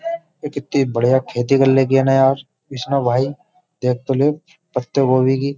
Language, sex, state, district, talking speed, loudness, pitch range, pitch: Hindi, male, Uttar Pradesh, Jyotiba Phule Nagar, 195 wpm, -18 LUFS, 130-145 Hz, 135 Hz